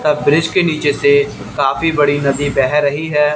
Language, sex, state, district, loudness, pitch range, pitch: Hindi, male, Haryana, Charkhi Dadri, -14 LUFS, 140-150 Hz, 145 Hz